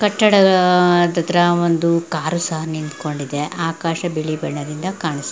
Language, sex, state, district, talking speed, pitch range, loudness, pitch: Kannada, female, Karnataka, Belgaum, 125 wpm, 155-175 Hz, -18 LUFS, 170 Hz